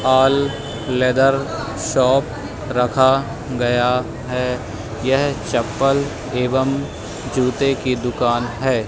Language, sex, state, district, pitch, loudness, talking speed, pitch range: Hindi, male, Madhya Pradesh, Katni, 125 Hz, -19 LUFS, 90 wpm, 120-135 Hz